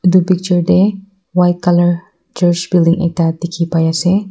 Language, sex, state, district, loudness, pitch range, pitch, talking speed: Nagamese, female, Nagaland, Kohima, -14 LUFS, 170-185 Hz, 175 Hz, 155 wpm